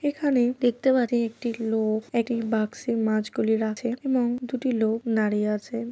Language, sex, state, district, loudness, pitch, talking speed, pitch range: Bengali, female, West Bengal, Paschim Medinipur, -25 LUFS, 235 Hz, 140 wpm, 220-245 Hz